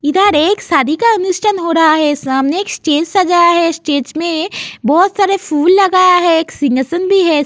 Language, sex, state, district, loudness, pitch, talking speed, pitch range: Hindi, female, Uttar Pradesh, Jyotiba Phule Nagar, -12 LUFS, 335 Hz, 195 wpm, 300-380 Hz